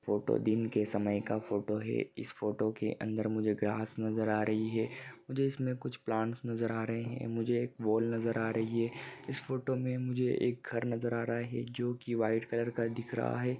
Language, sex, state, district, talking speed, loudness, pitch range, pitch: Hindi, male, Maharashtra, Nagpur, 215 wpm, -34 LUFS, 110-120 Hz, 115 Hz